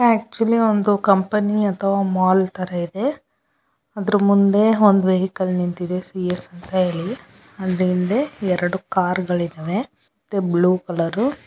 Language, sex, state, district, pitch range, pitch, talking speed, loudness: Kannada, female, Karnataka, Chamarajanagar, 180-210 Hz, 190 Hz, 105 wpm, -20 LUFS